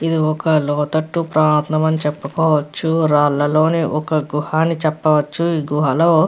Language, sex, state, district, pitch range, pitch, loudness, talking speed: Telugu, female, Andhra Pradesh, Krishna, 150-160 Hz, 155 Hz, -17 LUFS, 135 wpm